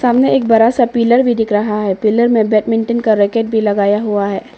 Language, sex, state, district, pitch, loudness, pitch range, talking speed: Hindi, female, Arunachal Pradesh, Papum Pare, 225 Hz, -13 LUFS, 210-235 Hz, 235 wpm